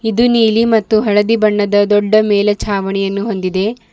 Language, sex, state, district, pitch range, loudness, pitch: Kannada, female, Karnataka, Bidar, 205-220 Hz, -13 LUFS, 210 Hz